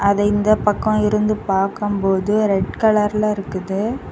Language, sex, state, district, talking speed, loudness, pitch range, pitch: Tamil, female, Tamil Nadu, Kanyakumari, 115 wpm, -18 LUFS, 195-215 Hz, 210 Hz